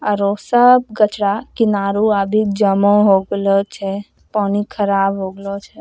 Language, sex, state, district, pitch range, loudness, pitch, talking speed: Angika, female, Bihar, Bhagalpur, 200-210 Hz, -16 LUFS, 200 Hz, 145 wpm